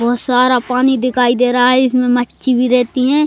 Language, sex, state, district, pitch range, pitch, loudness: Hindi, male, Madhya Pradesh, Bhopal, 245-255 Hz, 250 Hz, -13 LUFS